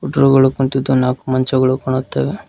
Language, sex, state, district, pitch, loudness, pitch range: Kannada, male, Karnataka, Koppal, 130 Hz, -15 LUFS, 130-135 Hz